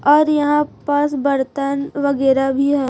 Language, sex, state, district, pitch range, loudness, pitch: Hindi, female, Chhattisgarh, Raipur, 275-290 Hz, -17 LUFS, 280 Hz